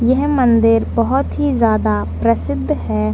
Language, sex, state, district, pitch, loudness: Hindi, female, Uttar Pradesh, Deoria, 225 Hz, -16 LUFS